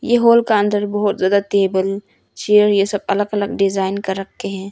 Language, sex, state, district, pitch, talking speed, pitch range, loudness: Hindi, female, Arunachal Pradesh, Longding, 200 Hz, 205 wpm, 195-205 Hz, -17 LUFS